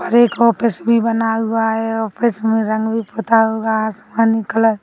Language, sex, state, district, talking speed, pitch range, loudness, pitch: Hindi, female, Chhattisgarh, Bilaspur, 210 wpm, 220-230 Hz, -16 LUFS, 225 Hz